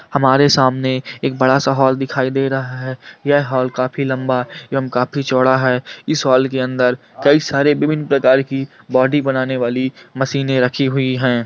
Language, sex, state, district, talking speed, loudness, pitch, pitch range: Hindi, male, Bihar, Jamui, 180 wpm, -16 LUFS, 130 Hz, 130-140 Hz